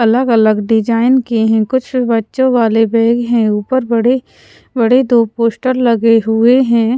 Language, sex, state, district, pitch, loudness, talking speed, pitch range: Hindi, female, Punjab, Pathankot, 230 Hz, -12 LUFS, 155 wpm, 225-250 Hz